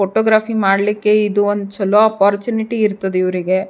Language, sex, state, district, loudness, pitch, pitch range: Kannada, female, Karnataka, Bijapur, -15 LUFS, 205 Hz, 195-215 Hz